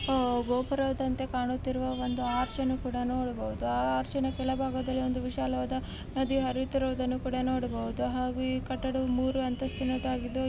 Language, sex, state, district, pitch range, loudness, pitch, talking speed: Kannada, female, Karnataka, Mysore, 250-260 Hz, -31 LUFS, 255 Hz, 110 wpm